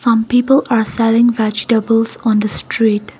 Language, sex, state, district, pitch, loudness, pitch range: English, female, Nagaland, Kohima, 225 Hz, -14 LUFS, 220-235 Hz